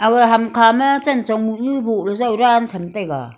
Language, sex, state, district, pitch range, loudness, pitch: Wancho, female, Arunachal Pradesh, Longding, 215-245 Hz, -16 LUFS, 230 Hz